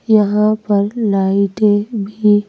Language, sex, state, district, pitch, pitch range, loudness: Hindi, female, Madhya Pradesh, Bhopal, 210 Hz, 200-215 Hz, -15 LUFS